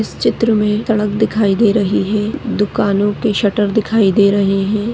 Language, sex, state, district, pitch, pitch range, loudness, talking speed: Hindi, female, Chhattisgarh, Kabirdham, 210 Hz, 205-220 Hz, -15 LUFS, 180 wpm